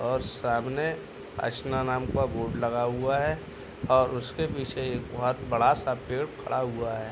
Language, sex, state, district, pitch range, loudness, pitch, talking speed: Hindi, male, Uttar Pradesh, Muzaffarnagar, 120-130 Hz, -29 LUFS, 130 Hz, 150 wpm